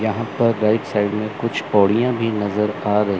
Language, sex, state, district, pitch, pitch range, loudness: Hindi, male, Chandigarh, Chandigarh, 105 Hz, 105-115 Hz, -19 LUFS